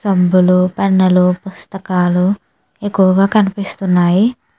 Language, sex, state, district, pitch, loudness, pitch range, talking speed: Telugu, female, Andhra Pradesh, Chittoor, 190 Hz, -13 LUFS, 180-200 Hz, 50 wpm